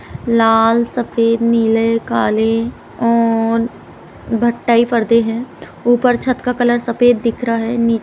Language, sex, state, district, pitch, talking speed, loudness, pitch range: Hindi, female, Uttar Pradesh, Etah, 230 Hz, 125 wpm, -15 LUFS, 230-240 Hz